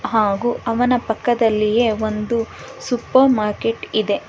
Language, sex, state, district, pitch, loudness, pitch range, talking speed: Kannada, female, Karnataka, Bangalore, 230 Hz, -18 LUFS, 215-240 Hz, 100 wpm